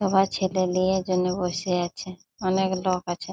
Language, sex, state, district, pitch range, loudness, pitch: Bengali, female, West Bengal, Jalpaiguri, 180-190 Hz, -25 LUFS, 185 Hz